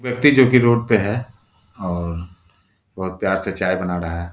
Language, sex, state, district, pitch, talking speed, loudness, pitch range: Hindi, male, Bihar, Gaya, 95 Hz, 195 wpm, -19 LUFS, 90-120 Hz